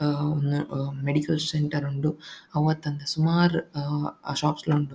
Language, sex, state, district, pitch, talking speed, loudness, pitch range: Tulu, male, Karnataka, Dakshina Kannada, 150 Hz, 145 wpm, -26 LUFS, 145-155 Hz